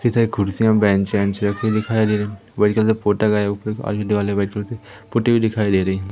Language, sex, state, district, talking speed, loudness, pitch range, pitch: Hindi, female, Madhya Pradesh, Umaria, 130 wpm, -19 LUFS, 100-110 Hz, 105 Hz